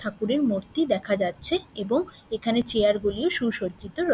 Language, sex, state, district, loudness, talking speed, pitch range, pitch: Bengali, female, West Bengal, Dakshin Dinajpur, -26 LUFS, 145 wpm, 205-285 Hz, 220 Hz